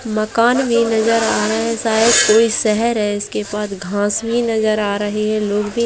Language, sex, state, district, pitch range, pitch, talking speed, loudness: Hindi, female, Bihar, Saharsa, 210-230 Hz, 215 Hz, 215 wpm, -16 LUFS